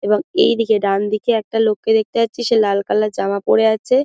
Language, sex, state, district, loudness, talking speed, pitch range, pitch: Bengali, female, West Bengal, Dakshin Dinajpur, -17 LUFS, 205 wpm, 210-230 Hz, 220 Hz